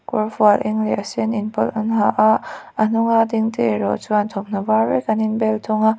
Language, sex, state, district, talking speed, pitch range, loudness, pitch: Mizo, female, Mizoram, Aizawl, 240 wpm, 210-220 Hz, -19 LUFS, 215 Hz